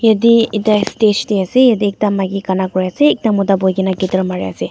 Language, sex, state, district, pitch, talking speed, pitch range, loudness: Nagamese, female, Nagaland, Dimapur, 195 Hz, 190 wpm, 190-215 Hz, -14 LUFS